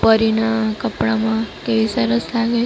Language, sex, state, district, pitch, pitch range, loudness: Gujarati, female, Maharashtra, Mumbai Suburban, 220 Hz, 185-225 Hz, -18 LUFS